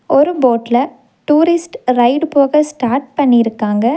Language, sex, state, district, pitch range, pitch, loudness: Tamil, female, Tamil Nadu, Nilgiris, 240-300 Hz, 265 Hz, -14 LUFS